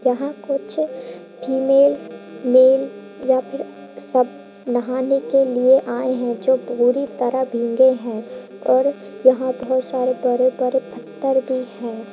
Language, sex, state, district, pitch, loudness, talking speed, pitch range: Hindi, female, Bihar, Purnia, 255 Hz, -19 LUFS, 135 wpm, 245-265 Hz